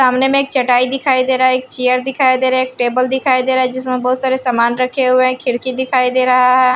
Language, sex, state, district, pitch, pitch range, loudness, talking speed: Hindi, female, Bihar, Patna, 255 Hz, 255-260 Hz, -14 LUFS, 275 wpm